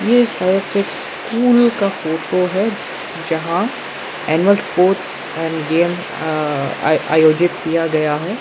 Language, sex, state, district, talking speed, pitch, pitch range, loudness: Hindi, male, Arunachal Pradesh, Lower Dibang Valley, 130 wpm, 175 Hz, 160-200 Hz, -17 LUFS